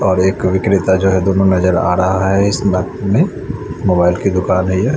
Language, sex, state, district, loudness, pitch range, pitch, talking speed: Hindi, male, Chandigarh, Chandigarh, -14 LUFS, 90-100 Hz, 95 Hz, 205 wpm